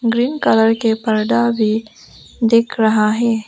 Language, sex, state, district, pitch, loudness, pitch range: Hindi, female, Arunachal Pradesh, Lower Dibang Valley, 225 Hz, -16 LUFS, 220-235 Hz